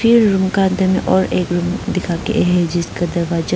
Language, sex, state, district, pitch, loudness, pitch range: Hindi, female, Arunachal Pradesh, Papum Pare, 180 Hz, -16 LUFS, 175-190 Hz